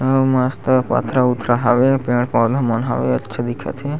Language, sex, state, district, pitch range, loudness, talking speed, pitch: Chhattisgarhi, male, Chhattisgarh, Sarguja, 120-130 Hz, -18 LUFS, 165 wpm, 125 Hz